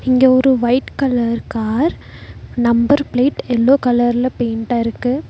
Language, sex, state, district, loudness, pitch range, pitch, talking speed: Tamil, female, Tamil Nadu, Nilgiris, -16 LUFS, 235-260 Hz, 250 Hz, 125 wpm